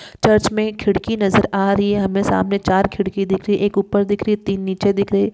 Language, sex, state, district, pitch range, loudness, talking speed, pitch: Hindi, female, Uttar Pradesh, Hamirpur, 195-205 Hz, -18 LUFS, 260 wpm, 200 Hz